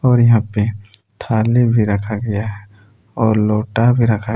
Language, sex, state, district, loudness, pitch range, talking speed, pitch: Hindi, male, Jharkhand, Palamu, -16 LUFS, 105-115 Hz, 165 wpm, 110 Hz